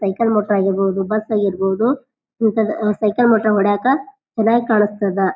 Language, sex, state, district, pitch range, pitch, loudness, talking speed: Kannada, female, Karnataka, Bijapur, 200-230 Hz, 215 Hz, -17 LUFS, 125 wpm